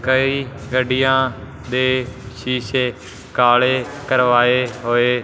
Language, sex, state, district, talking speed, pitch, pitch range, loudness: Punjabi, male, Punjab, Fazilka, 80 wpm, 125 Hz, 125-130 Hz, -18 LUFS